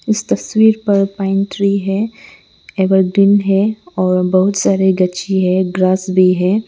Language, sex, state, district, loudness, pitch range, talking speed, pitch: Hindi, male, Arunachal Pradesh, Lower Dibang Valley, -14 LUFS, 185-200 Hz, 135 wpm, 195 Hz